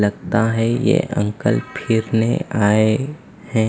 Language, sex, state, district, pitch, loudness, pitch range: Hindi, male, Punjab, Fazilka, 115 Hz, -18 LUFS, 105-120 Hz